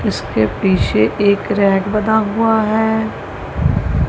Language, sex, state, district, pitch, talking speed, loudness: Hindi, female, Punjab, Kapurthala, 205 Hz, 105 wpm, -16 LUFS